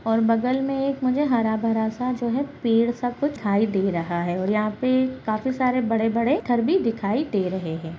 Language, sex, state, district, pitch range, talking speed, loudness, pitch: Hindi, female, Bihar, Kishanganj, 215-255 Hz, 210 wpm, -23 LUFS, 230 Hz